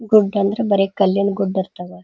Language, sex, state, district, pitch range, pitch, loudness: Kannada, female, Karnataka, Dharwad, 190-200 Hz, 195 Hz, -18 LUFS